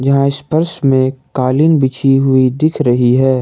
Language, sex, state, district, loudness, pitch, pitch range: Hindi, male, Jharkhand, Ranchi, -13 LUFS, 135 Hz, 130-145 Hz